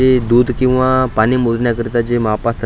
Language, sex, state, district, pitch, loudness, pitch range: Marathi, male, Maharashtra, Washim, 120 Hz, -14 LUFS, 115-130 Hz